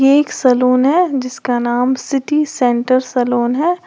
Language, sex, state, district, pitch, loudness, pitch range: Hindi, female, Uttar Pradesh, Lalitpur, 255 Hz, -15 LUFS, 245-285 Hz